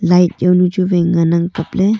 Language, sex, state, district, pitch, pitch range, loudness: Wancho, female, Arunachal Pradesh, Longding, 180 Hz, 170-185 Hz, -14 LUFS